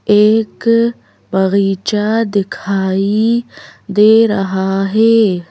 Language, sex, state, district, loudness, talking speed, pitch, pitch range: Hindi, female, Madhya Pradesh, Bhopal, -13 LUFS, 65 wpm, 210 Hz, 195-225 Hz